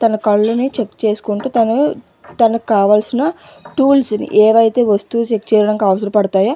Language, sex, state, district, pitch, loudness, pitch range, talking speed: Telugu, female, Andhra Pradesh, Visakhapatnam, 220 Hz, -14 LUFS, 210-240 Hz, 155 wpm